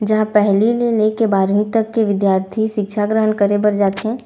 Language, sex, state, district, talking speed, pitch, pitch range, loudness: Chhattisgarhi, female, Chhattisgarh, Raigarh, 185 wpm, 210 Hz, 200-220 Hz, -16 LUFS